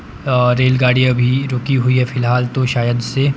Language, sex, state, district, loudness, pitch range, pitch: Hindi, male, Himachal Pradesh, Shimla, -15 LUFS, 125-130 Hz, 125 Hz